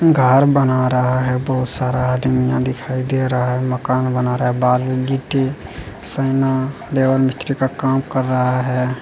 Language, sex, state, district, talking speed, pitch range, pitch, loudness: Hindi, male, Bihar, Jamui, 175 wpm, 125-130 Hz, 130 Hz, -18 LUFS